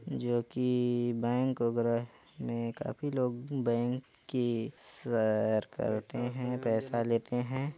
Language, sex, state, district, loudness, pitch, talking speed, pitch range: Hindi, male, Chhattisgarh, Balrampur, -33 LUFS, 120 Hz, 110 wpm, 115-125 Hz